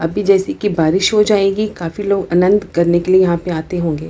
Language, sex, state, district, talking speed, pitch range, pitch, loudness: Hindi, female, Bihar, Lakhisarai, 235 wpm, 170-205 Hz, 185 Hz, -15 LUFS